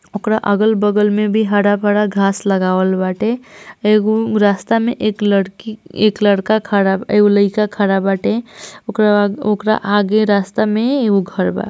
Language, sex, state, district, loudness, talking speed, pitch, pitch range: Hindi, female, Bihar, East Champaran, -15 LUFS, 150 wpm, 210 Hz, 200-215 Hz